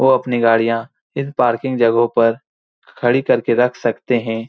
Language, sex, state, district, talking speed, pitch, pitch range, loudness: Hindi, male, Bihar, Saran, 160 wpm, 120 Hz, 115-125 Hz, -17 LUFS